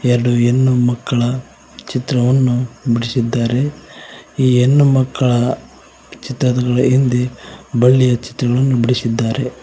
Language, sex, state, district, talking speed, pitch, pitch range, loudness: Kannada, male, Karnataka, Koppal, 70 wpm, 125 Hz, 120-130 Hz, -15 LUFS